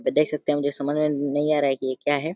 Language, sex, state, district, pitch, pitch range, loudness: Hindi, male, Uttar Pradesh, Deoria, 145 Hz, 140-150 Hz, -24 LUFS